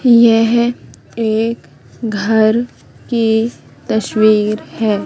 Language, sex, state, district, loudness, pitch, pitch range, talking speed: Hindi, female, Madhya Pradesh, Katni, -15 LUFS, 225 Hz, 215-235 Hz, 70 wpm